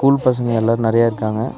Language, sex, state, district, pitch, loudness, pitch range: Tamil, male, Tamil Nadu, Nilgiris, 115 Hz, -17 LUFS, 110-125 Hz